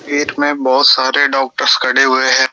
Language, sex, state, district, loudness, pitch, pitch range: Hindi, male, Rajasthan, Jaipur, -12 LUFS, 135 Hz, 130-145 Hz